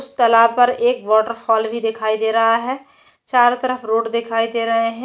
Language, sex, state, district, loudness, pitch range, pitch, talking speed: Hindi, female, Chhattisgarh, Jashpur, -17 LUFS, 225-245 Hz, 230 Hz, 215 wpm